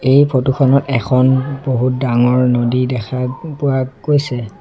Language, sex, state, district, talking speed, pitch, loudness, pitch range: Assamese, male, Assam, Sonitpur, 130 wpm, 130 Hz, -15 LUFS, 125-135 Hz